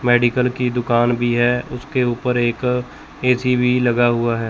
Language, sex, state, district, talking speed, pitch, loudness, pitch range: Hindi, male, Chandigarh, Chandigarh, 175 wpm, 120 Hz, -18 LUFS, 120-125 Hz